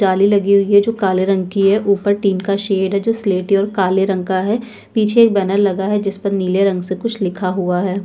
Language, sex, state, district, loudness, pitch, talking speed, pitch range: Hindi, female, Chhattisgarh, Sukma, -16 LUFS, 195 Hz, 245 wpm, 190-205 Hz